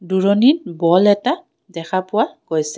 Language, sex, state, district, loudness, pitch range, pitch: Assamese, female, Assam, Kamrup Metropolitan, -17 LUFS, 175-225 Hz, 190 Hz